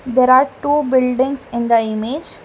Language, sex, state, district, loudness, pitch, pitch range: English, female, Karnataka, Bangalore, -16 LUFS, 260 Hz, 240-275 Hz